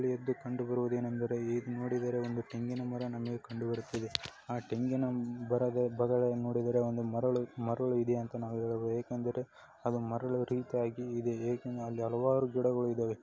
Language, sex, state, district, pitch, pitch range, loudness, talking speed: Kannada, male, Karnataka, Dakshina Kannada, 120 Hz, 120-125 Hz, -35 LUFS, 155 wpm